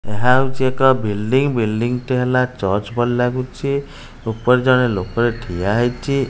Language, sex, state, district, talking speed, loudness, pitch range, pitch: Odia, male, Odisha, Khordha, 145 wpm, -18 LUFS, 115-130 Hz, 125 Hz